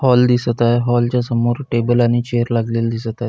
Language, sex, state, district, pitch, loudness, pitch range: Marathi, male, Maharashtra, Pune, 120 Hz, -17 LUFS, 115-120 Hz